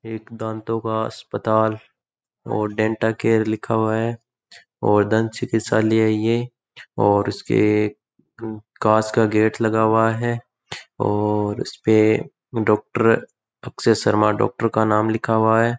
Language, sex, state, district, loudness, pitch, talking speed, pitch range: Rajasthani, male, Rajasthan, Churu, -20 LUFS, 110 Hz, 120 wpm, 110-115 Hz